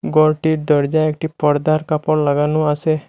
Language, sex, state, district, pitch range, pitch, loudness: Bengali, male, Assam, Hailakandi, 150-155 Hz, 155 Hz, -17 LUFS